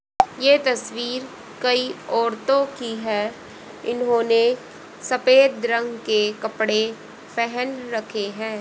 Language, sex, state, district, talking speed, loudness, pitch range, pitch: Hindi, female, Haryana, Rohtak, 95 wpm, -21 LUFS, 220-255 Hz, 235 Hz